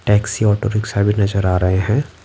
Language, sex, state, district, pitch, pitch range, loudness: Hindi, male, Bihar, Patna, 105 Hz, 95-110 Hz, -17 LUFS